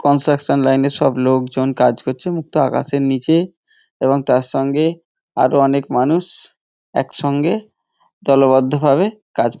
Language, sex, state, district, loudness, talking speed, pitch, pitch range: Bengali, male, West Bengal, Dakshin Dinajpur, -16 LUFS, 130 wpm, 140 Hz, 135-170 Hz